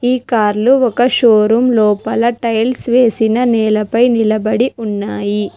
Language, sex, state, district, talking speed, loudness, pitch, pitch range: Telugu, female, Telangana, Hyderabad, 110 wpm, -13 LUFS, 225 Hz, 215-245 Hz